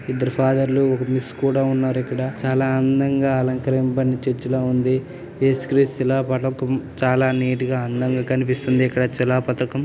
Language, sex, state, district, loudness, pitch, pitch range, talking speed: Telugu, male, Telangana, Nalgonda, -20 LUFS, 130 Hz, 130-135 Hz, 160 wpm